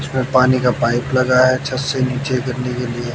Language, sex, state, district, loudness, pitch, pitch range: Hindi, male, Haryana, Jhajjar, -17 LUFS, 130 Hz, 125-130 Hz